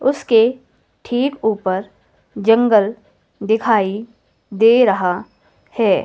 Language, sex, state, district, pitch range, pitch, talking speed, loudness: Hindi, female, Himachal Pradesh, Shimla, 200-240 Hz, 225 Hz, 80 wpm, -16 LUFS